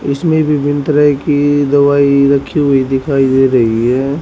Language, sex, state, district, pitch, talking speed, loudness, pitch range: Hindi, male, Haryana, Rohtak, 140 Hz, 155 wpm, -12 LUFS, 135-145 Hz